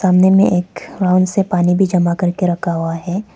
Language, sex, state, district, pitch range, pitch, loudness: Hindi, female, Arunachal Pradesh, Lower Dibang Valley, 175-190 Hz, 180 Hz, -15 LUFS